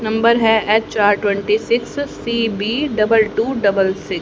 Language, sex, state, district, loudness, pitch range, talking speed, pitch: Hindi, female, Haryana, Jhajjar, -17 LUFS, 205-235 Hz, 155 wpm, 220 Hz